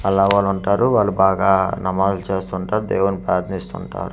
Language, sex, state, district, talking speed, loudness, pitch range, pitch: Telugu, male, Andhra Pradesh, Manyam, 115 wpm, -19 LUFS, 95-100 Hz, 95 Hz